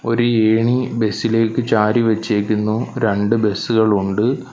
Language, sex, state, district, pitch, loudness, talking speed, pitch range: Malayalam, male, Kerala, Kollam, 110 Hz, -17 LUFS, 120 wpm, 105-115 Hz